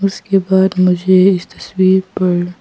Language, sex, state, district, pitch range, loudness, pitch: Hindi, female, Arunachal Pradesh, Papum Pare, 185-190 Hz, -13 LUFS, 185 Hz